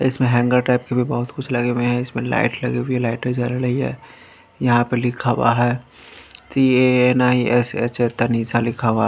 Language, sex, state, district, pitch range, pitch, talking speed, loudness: Hindi, male, Bihar, Patna, 120-125 Hz, 120 Hz, 225 wpm, -19 LUFS